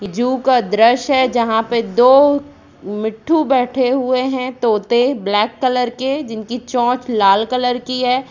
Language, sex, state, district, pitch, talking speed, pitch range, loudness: Hindi, female, Jharkhand, Jamtara, 250 Hz, 145 wpm, 225-260 Hz, -16 LUFS